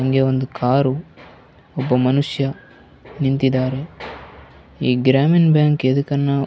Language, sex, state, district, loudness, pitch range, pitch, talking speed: Kannada, male, Karnataka, Bellary, -18 LUFS, 130-140 Hz, 135 Hz, 100 wpm